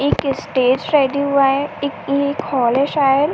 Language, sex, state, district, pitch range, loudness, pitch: Hindi, female, Uttar Pradesh, Ghazipur, 270-285 Hz, -17 LUFS, 280 Hz